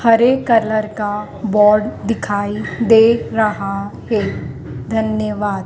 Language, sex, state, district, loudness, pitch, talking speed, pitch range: Hindi, female, Madhya Pradesh, Dhar, -16 LUFS, 215 Hz, 95 wpm, 205-225 Hz